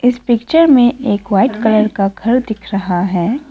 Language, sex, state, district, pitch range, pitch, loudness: Hindi, female, Assam, Kamrup Metropolitan, 200-250 Hz, 220 Hz, -13 LUFS